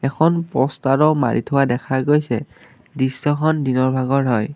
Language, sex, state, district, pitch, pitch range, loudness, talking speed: Assamese, male, Assam, Kamrup Metropolitan, 135 Hz, 130-150 Hz, -18 LUFS, 130 wpm